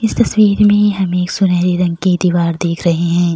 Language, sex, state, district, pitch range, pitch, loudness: Hindi, female, Bihar, Kishanganj, 170-195 Hz, 180 Hz, -13 LUFS